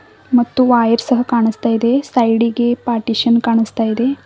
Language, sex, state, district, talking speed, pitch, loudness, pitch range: Kannada, female, Karnataka, Bidar, 140 wpm, 235 Hz, -15 LUFS, 230-245 Hz